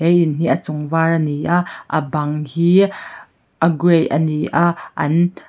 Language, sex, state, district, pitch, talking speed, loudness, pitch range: Mizo, female, Mizoram, Aizawl, 165 Hz, 195 wpm, -17 LUFS, 150-170 Hz